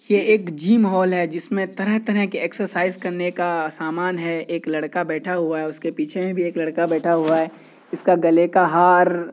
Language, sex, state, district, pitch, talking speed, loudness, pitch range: Hindi, male, Bihar, Kishanganj, 175 Hz, 205 wpm, -20 LUFS, 165-185 Hz